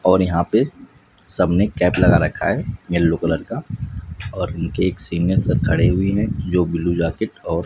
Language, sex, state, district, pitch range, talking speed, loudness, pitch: Hindi, male, Bihar, West Champaran, 85-95 Hz, 190 wpm, -19 LUFS, 90 Hz